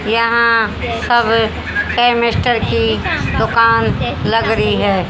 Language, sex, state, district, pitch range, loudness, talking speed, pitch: Hindi, female, Haryana, Jhajjar, 215-235 Hz, -14 LUFS, 95 wpm, 230 Hz